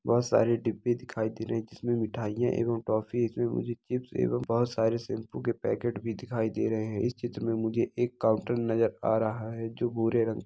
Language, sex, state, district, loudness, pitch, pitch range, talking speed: Hindi, male, Bihar, Purnia, -30 LUFS, 115 Hz, 110-120 Hz, 230 wpm